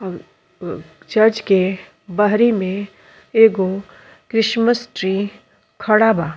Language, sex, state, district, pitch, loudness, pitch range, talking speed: Bhojpuri, female, Uttar Pradesh, Ghazipur, 210 Hz, -17 LUFS, 190-225 Hz, 105 wpm